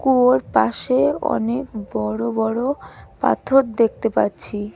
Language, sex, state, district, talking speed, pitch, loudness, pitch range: Bengali, female, West Bengal, Cooch Behar, 100 wpm, 230 Hz, -20 LUFS, 175-265 Hz